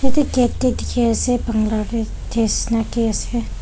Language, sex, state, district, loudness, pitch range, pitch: Nagamese, female, Nagaland, Dimapur, -20 LUFS, 225-245 Hz, 235 Hz